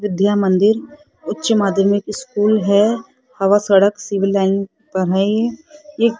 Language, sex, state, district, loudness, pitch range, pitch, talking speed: Hindi, female, Rajasthan, Jaipur, -17 LUFS, 195-230 Hz, 205 Hz, 135 wpm